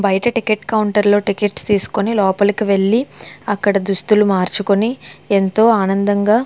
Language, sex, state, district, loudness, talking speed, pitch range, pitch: Telugu, female, Andhra Pradesh, Visakhapatnam, -16 LUFS, 130 wpm, 200-215 Hz, 205 Hz